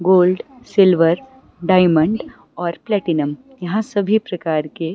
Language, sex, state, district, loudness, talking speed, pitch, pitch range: Hindi, female, Himachal Pradesh, Shimla, -18 LUFS, 110 wpm, 185 Hz, 170-215 Hz